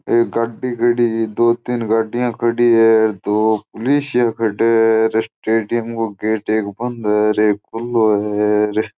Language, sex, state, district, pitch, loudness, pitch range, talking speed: Marwari, male, Rajasthan, Churu, 115 Hz, -17 LUFS, 110-120 Hz, 145 wpm